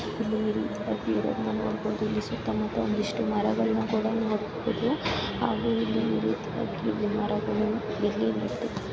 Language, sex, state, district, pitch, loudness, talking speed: Kannada, female, Karnataka, Dakshina Kannada, 115 Hz, -28 LUFS, 55 wpm